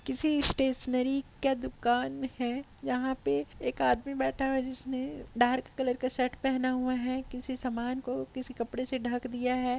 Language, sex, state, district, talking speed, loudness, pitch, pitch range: Hindi, female, Chhattisgarh, Raigarh, 165 wpm, -32 LUFS, 255 Hz, 245-265 Hz